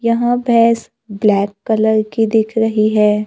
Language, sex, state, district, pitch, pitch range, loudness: Hindi, male, Maharashtra, Gondia, 220 Hz, 215-230 Hz, -15 LUFS